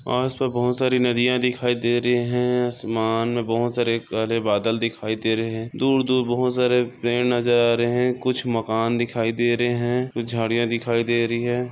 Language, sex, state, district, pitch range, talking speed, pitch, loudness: Hindi, male, Maharashtra, Chandrapur, 115-125 Hz, 195 wpm, 120 Hz, -22 LUFS